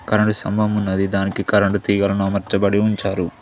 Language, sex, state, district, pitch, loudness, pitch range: Telugu, male, Telangana, Mahabubabad, 100 Hz, -19 LUFS, 95-105 Hz